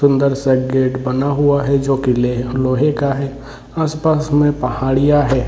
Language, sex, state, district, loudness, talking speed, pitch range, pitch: Hindi, male, Jharkhand, Sahebganj, -16 LUFS, 175 wpm, 130-145 Hz, 135 Hz